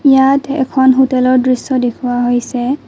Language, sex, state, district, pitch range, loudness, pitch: Assamese, female, Assam, Kamrup Metropolitan, 245-270 Hz, -13 LUFS, 260 Hz